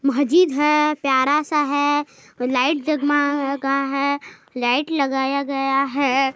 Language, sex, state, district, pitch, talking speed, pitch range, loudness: Hindi, female, Chhattisgarh, Sarguja, 280 Hz, 115 wpm, 270-290 Hz, -20 LUFS